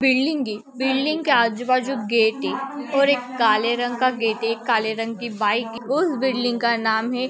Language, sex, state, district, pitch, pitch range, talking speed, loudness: Hindi, female, Maharashtra, Aurangabad, 245 Hz, 225-265 Hz, 180 wpm, -21 LUFS